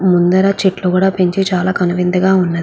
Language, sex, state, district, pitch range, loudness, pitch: Telugu, female, Andhra Pradesh, Guntur, 180-190 Hz, -14 LUFS, 185 Hz